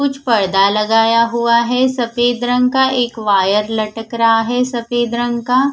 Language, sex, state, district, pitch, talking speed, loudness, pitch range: Hindi, female, Punjab, Fazilka, 235 Hz, 170 wpm, -15 LUFS, 225-245 Hz